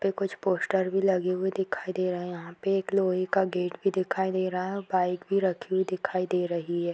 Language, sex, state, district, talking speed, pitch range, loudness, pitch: Hindi, female, Bihar, East Champaran, 260 wpm, 180-195 Hz, -28 LUFS, 185 Hz